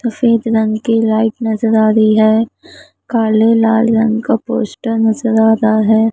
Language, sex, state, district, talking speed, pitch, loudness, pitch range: Hindi, female, Maharashtra, Mumbai Suburban, 165 wpm, 225 Hz, -13 LUFS, 220-230 Hz